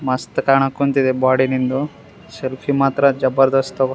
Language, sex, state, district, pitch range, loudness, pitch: Kannada, male, Karnataka, Raichur, 130-135 Hz, -17 LUFS, 135 Hz